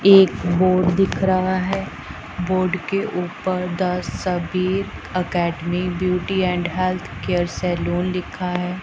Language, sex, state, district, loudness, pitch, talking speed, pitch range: Hindi, female, Punjab, Pathankot, -21 LUFS, 180 Hz, 115 wpm, 180-185 Hz